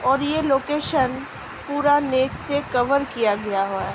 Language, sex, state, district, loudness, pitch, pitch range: Hindi, female, Uttar Pradesh, Budaun, -21 LUFS, 270 Hz, 245-285 Hz